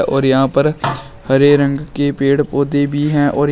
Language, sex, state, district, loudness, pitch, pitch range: Hindi, male, Uttar Pradesh, Shamli, -14 LUFS, 140 Hz, 135-145 Hz